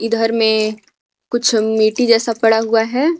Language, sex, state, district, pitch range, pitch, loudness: Hindi, female, Jharkhand, Garhwa, 220-235 Hz, 225 Hz, -15 LUFS